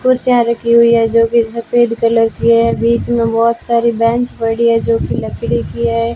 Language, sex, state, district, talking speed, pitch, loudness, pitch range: Hindi, female, Rajasthan, Bikaner, 215 wpm, 230 Hz, -13 LUFS, 225-235 Hz